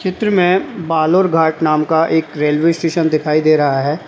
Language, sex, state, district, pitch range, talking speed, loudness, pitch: Hindi, male, Uttar Pradesh, Lalitpur, 155-170 Hz, 190 wpm, -14 LUFS, 160 Hz